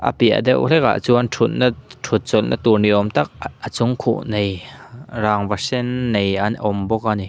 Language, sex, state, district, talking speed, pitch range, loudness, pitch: Mizo, male, Mizoram, Aizawl, 175 wpm, 105-120 Hz, -18 LUFS, 110 Hz